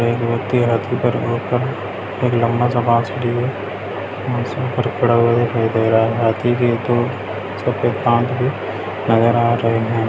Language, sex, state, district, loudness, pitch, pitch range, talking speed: Hindi, male, Bihar, Gaya, -18 LUFS, 120 Hz, 115-120 Hz, 170 wpm